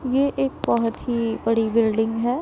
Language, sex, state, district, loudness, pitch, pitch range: Hindi, male, Punjab, Pathankot, -22 LUFS, 230 Hz, 225-260 Hz